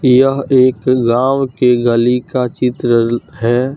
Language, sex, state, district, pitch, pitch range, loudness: Hindi, male, Jharkhand, Deoghar, 125 Hz, 120-130 Hz, -13 LUFS